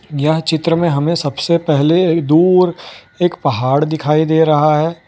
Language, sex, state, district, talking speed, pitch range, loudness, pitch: Hindi, male, Gujarat, Valsad, 155 wpm, 150-170 Hz, -14 LUFS, 160 Hz